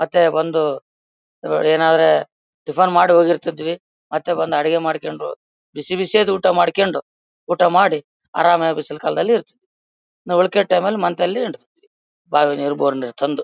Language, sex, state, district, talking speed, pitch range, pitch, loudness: Kannada, male, Karnataka, Bellary, 135 wpm, 150-175 Hz, 160 Hz, -17 LUFS